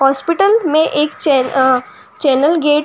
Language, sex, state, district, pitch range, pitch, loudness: Hindi, female, Uttar Pradesh, Jyotiba Phule Nagar, 270-325 Hz, 300 Hz, -13 LUFS